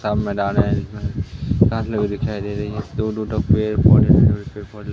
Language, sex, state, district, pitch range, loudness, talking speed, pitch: Hindi, male, Madhya Pradesh, Katni, 105-110 Hz, -19 LUFS, 205 wpm, 105 Hz